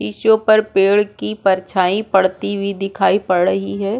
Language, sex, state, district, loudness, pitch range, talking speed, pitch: Hindi, female, Chhattisgarh, Korba, -16 LUFS, 185-205 Hz, 165 wpm, 195 Hz